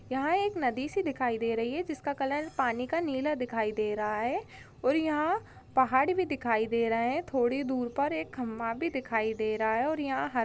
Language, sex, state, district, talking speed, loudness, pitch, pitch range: Hindi, female, Chhattisgarh, Kabirdham, 210 wpm, -30 LUFS, 260 Hz, 230-300 Hz